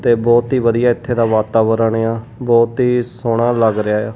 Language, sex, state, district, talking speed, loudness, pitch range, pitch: Punjabi, male, Punjab, Kapurthala, 200 wpm, -15 LUFS, 115-120 Hz, 115 Hz